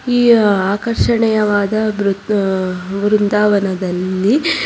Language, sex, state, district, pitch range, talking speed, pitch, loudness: Kannada, female, Karnataka, Bangalore, 195-220 Hz, 65 wpm, 205 Hz, -15 LUFS